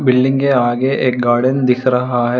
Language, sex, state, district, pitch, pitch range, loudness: Hindi, male, Telangana, Hyderabad, 125 Hz, 125-130 Hz, -15 LUFS